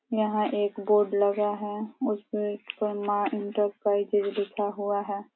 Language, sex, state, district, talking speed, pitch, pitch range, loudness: Hindi, female, Uttar Pradesh, Ghazipur, 125 wpm, 205 Hz, 205-210 Hz, -28 LUFS